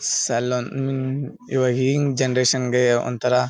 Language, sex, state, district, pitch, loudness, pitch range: Kannada, male, Karnataka, Bellary, 130 Hz, -21 LUFS, 125-135 Hz